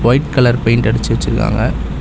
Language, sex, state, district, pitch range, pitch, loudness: Tamil, male, Tamil Nadu, Chennai, 115-125 Hz, 120 Hz, -14 LUFS